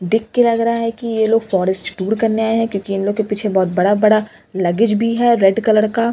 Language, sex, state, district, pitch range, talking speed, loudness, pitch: Hindi, female, Bihar, Katihar, 195-230 Hz, 275 wpm, -16 LUFS, 220 Hz